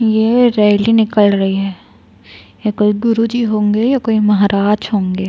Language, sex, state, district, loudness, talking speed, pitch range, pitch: Hindi, female, Chhattisgarh, Jashpur, -13 LUFS, 145 wpm, 195-225 Hz, 210 Hz